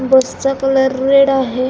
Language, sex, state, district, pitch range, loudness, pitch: Marathi, female, Maharashtra, Pune, 265-270 Hz, -13 LUFS, 265 Hz